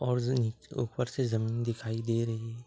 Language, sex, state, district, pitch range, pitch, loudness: Hindi, male, Uttar Pradesh, Etah, 115-125 Hz, 115 Hz, -32 LUFS